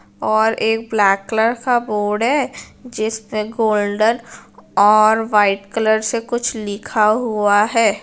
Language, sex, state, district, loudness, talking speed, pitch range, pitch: Hindi, female, Bihar, Saran, -17 LUFS, 135 wpm, 210-225 Hz, 220 Hz